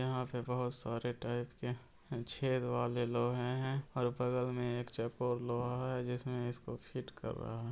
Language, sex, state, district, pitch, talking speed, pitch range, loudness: Hindi, male, Bihar, Gopalganj, 125 Hz, 180 wpm, 120-125 Hz, -38 LUFS